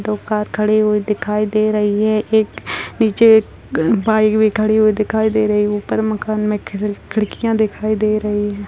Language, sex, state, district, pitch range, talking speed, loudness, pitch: Hindi, female, Bihar, Begusarai, 210-215 Hz, 200 wpm, -16 LUFS, 215 Hz